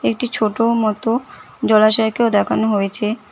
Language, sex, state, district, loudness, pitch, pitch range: Bengali, female, West Bengal, Cooch Behar, -17 LUFS, 220 Hz, 210-235 Hz